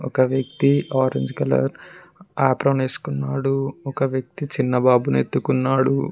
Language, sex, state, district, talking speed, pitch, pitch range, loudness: Telugu, male, Telangana, Mahabubabad, 110 wpm, 135 Hz, 125-135 Hz, -21 LUFS